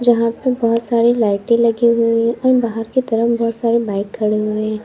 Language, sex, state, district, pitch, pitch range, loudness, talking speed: Hindi, female, Uttar Pradesh, Lalitpur, 230 Hz, 225-235 Hz, -16 LUFS, 220 wpm